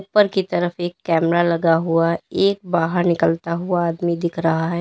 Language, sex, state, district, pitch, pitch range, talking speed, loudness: Hindi, female, Uttar Pradesh, Lalitpur, 170 Hz, 165-175 Hz, 185 wpm, -19 LUFS